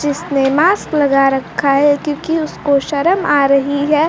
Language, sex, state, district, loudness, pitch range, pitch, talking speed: Hindi, female, Bihar, Kaimur, -14 LUFS, 275-310 Hz, 290 Hz, 160 wpm